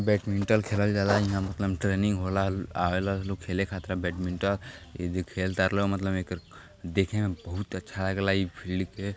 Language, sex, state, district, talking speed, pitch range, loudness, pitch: Bhojpuri, male, Uttar Pradesh, Gorakhpur, 185 wpm, 95-100 Hz, -29 LUFS, 95 Hz